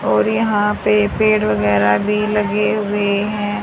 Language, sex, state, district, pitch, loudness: Hindi, female, Haryana, Charkhi Dadri, 205 Hz, -16 LUFS